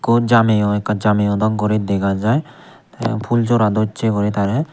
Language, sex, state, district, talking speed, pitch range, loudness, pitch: Chakma, male, Tripura, Unakoti, 180 wpm, 105-115 Hz, -17 LUFS, 110 Hz